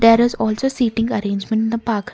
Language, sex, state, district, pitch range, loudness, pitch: English, female, Karnataka, Bangalore, 220-235 Hz, -19 LUFS, 230 Hz